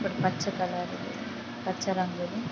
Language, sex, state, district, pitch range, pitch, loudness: Telugu, female, Andhra Pradesh, Krishna, 180-195 Hz, 185 Hz, -32 LUFS